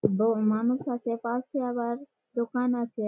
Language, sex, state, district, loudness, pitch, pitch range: Bengali, female, West Bengal, Malda, -29 LUFS, 240 Hz, 230-250 Hz